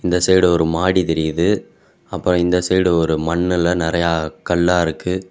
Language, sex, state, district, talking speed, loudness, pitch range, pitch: Tamil, male, Tamil Nadu, Kanyakumari, 145 wpm, -17 LUFS, 80-90 Hz, 85 Hz